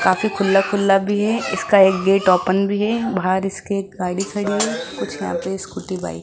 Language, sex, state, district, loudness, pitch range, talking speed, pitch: Hindi, female, Rajasthan, Jaipur, -19 LUFS, 190-205 Hz, 210 wpm, 195 Hz